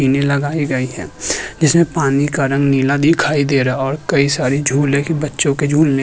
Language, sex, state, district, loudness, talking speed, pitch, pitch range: Hindi, male, Uttarakhand, Tehri Garhwal, -16 LUFS, 220 wpm, 140 Hz, 135-150 Hz